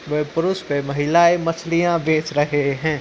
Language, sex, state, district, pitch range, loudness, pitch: Hindi, male, Uttar Pradesh, Muzaffarnagar, 145-170 Hz, -19 LUFS, 155 Hz